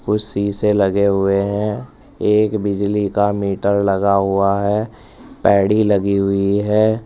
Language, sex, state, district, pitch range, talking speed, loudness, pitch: Hindi, male, Uttar Pradesh, Saharanpur, 100-105 Hz, 135 wpm, -16 LUFS, 100 Hz